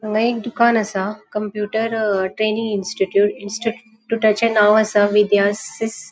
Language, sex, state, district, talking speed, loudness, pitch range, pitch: Konkani, female, Goa, North and South Goa, 120 wpm, -18 LUFS, 205-225 Hz, 215 Hz